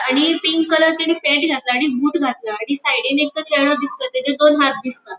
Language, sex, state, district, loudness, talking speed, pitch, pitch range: Konkani, female, Goa, North and South Goa, -17 LUFS, 220 wpm, 290 Hz, 270-320 Hz